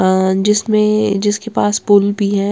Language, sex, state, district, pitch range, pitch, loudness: Hindi, female, Bihar, West Champaran, 200-210 Hz, 205 Hz, -14 LUFS